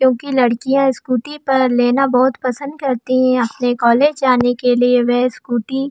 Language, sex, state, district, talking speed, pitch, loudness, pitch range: Hindi, female, Jharkhand, Jamtara, 160 wpm, 255 Hz, -16 LUFS, 245-265 Hz